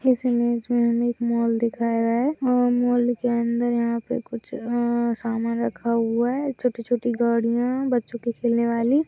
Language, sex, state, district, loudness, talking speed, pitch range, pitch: Hindi, female, Bihar, Saharsa, -23 LUFS, 185 wpm, 235-245 Hz, 235 Hz